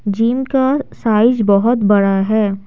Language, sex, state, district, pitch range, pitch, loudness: Hindi, female, Bihar, Patna, 200-240 Hz, 220 Hz, -14 LUFS